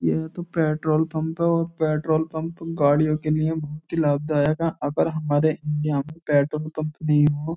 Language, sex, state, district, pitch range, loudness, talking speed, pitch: Hindi, male, Uttar Pradesh, Jyotiba Phule Nagar, 150-160 Hz, -23 LUFS, 190 wpm, 155 Hz